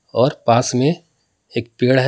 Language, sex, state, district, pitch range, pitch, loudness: Hindi, male, Jharkhand, Palamu, 120-140 Hz, 125 Hz, -18 LUFS